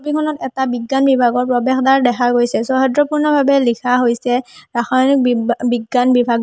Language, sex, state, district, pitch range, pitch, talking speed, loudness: Assamese, female, Assam, Hailakandi, 245-270 Hz, 250 Hz, 140 wpm, -15 LUFS